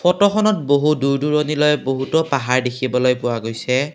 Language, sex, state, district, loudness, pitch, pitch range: Assamese, male, Assam, Kamrup Metropolitan, -18 LUFS, 140 Hz, 125-150 Hz